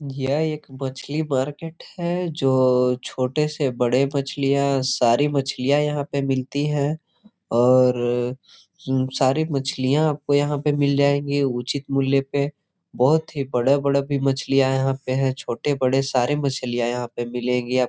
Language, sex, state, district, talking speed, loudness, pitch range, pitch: Hindi, male, Jharkhand, Sahebganj, 160 wpm, -22 LUFS, 130-145 Hz, 135 Hz